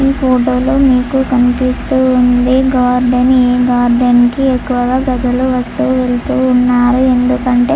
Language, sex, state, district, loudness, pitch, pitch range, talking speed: Telugu, female, Andhra Pradesh, Chittoor, -11 LUFS, 250 Hz, 245-260 Hz, 110 wpm